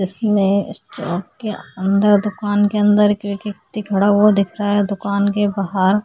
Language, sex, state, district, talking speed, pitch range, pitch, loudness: Hindi, female, Maharashtra, Aurangabad, 170 wpm, 200-210 Hz, 205 Hz, -17 LUFS